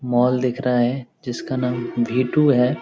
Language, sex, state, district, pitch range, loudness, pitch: Hindi, male, Bihar, Lakhisarai, 120-130 Hz, -21 LUFS, 125 Hz